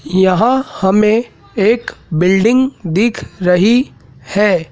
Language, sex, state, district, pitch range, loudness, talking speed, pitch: Hindi, male, Madhya Pradesh, Dhar, 185-235 Hz, -14 LUFS, 90 wpm, 205 Hz